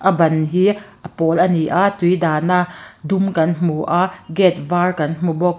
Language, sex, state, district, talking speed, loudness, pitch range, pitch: Mizo, female, Mizoram, Aizawl, 205 wpm, -17 LUFS, 165-185 Hz, 175 Hz